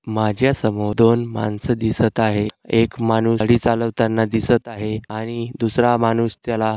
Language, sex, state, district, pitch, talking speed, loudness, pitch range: Marathi, male, Maharashtra, Sindhudurg, 115 Hz, 140 wpm, -19 LUFS, 110-115 Hz